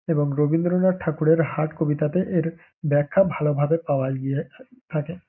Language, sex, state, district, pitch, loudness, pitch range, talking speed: Bengali, male, West Bengal, Paschim Medinipur, 160 Hz, -23 LUFS, 150-175 Hz, 135 wpm